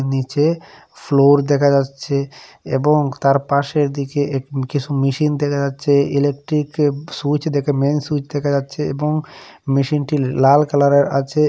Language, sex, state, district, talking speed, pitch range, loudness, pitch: Bengali, male, Assam, Hailakandi, 135 wpm, 140-145 Hz, -17 LUFS, 140 Hz